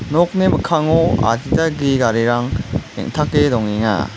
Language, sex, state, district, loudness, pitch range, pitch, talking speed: Garo, male, Meghalaya, West Garo Hills, -17 LUFS, 115-160 Hz, 135 Hz, 100 wpm